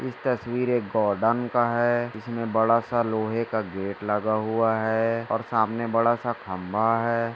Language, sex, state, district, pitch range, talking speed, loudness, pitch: Hindi, male, Maharashtra, Dhule, 110-120 Hz, 170 wpm, -25 LUFS, 115 Hz